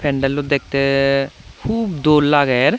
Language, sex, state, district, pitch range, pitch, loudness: Chakma, male, Tripura, Dhalai, 135-150 Hz, 140 Hz, -17 LUFS